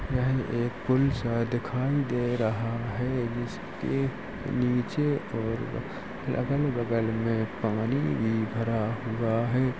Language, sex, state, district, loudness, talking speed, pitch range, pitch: Hindi, male, Uttar Pradesh, Jalaun, -29 LUFS, 110 wpm, 115-130 Hz, 120 Hz